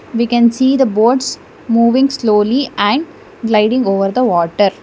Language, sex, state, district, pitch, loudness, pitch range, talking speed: English, female, Karnataka, Bangalore, 235 Hz, -13 LUFS, 210-265 Hz, 150 wpm